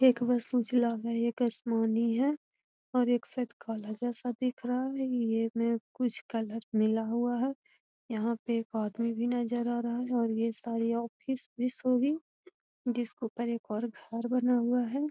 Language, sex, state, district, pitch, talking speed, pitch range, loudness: Magahi, female, Bihar, Gaya, 240 Hz, 180 wpm, 230-250 Hz, -32 LUFS